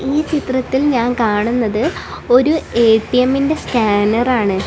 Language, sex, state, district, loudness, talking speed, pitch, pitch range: Malayalam, female, Kerala, Kasaragod, -15 LUFS, 115 wpm, 245 Hz, 225-270 Hz